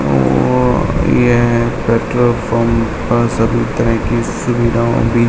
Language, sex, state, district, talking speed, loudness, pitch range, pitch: Hindi, male, Uttar Pradesh, Hamirpur, 115 wpm, -14 LUFS, 115-120 Hz, 115 Hz